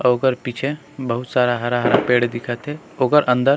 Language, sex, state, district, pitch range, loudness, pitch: Surgujia, male, Chhattisgarh, Sarguja, 120-140 Hz, -19 LUFS, 125 Hz